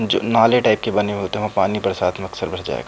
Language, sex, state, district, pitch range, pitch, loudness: Hindi, male, Uttar Pradesh, Jyotiba Phule Nagar, 95-110 Hz, 105 Hz, -19 LUFS